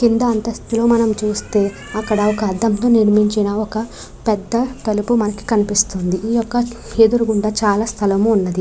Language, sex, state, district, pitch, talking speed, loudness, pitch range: Telugu, female, Andhra Pradesh, Krishna, 215 Hz, 130 wpm, -17 LUFS, 210-230 Hz